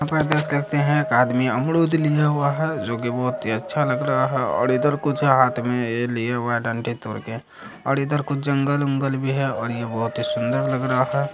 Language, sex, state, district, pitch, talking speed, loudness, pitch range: Hindi, male, Bihar, Saharsa, 130 Hz, 245 wpm, -22 LUFS, 120-145 Hz